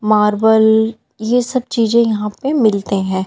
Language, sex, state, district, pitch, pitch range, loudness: Hindi, female, Haryana, Jhajjar, 220 Hz, 210-235 Hz, -15 LUFS